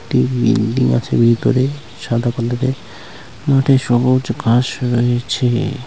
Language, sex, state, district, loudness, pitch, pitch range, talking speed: Bengali, male, West Bengal, North 24 Parganas, -16 LUFS, 120 Hz, 115-130 Hz, 90 wpm